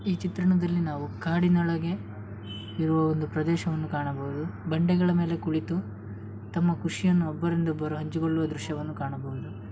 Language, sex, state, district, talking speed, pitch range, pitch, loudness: Kannada, male, Karnataka, Dakshina Kannada, 110 wpm, 140-170 Hz, 160 Hz, -28 LUFS